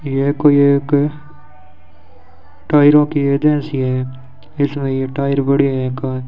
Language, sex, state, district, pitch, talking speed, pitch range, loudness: Hindi, male, Rajasthan, Bikaner, 140 Hz, 135 wpm, 130-145 Hz, -15 LUFS